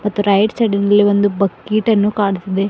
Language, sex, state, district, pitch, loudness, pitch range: Kannada, female, Karnataka, Bidar, 205 Hz, -15 LUFS, 200-210 Hz